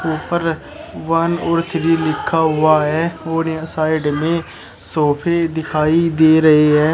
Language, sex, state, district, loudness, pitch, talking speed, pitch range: Hindi, male, Uttar Pradesh, Shamli, -16 LUFS, 160 Hz, 140 wpm, 155-165 Hz